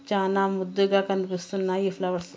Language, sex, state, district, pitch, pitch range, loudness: Telugu, female, Andhra Pradesh, Anantapur, 195 Hz, 185-195 Hz, -26 LUFS